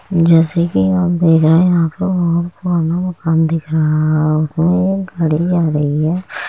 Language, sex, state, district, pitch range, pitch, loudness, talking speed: Hindi, female, Uttar Pradesh, Muzaffarnagar, 155-175 Hz, 165 Hz, -14 LUFS, 185 wpm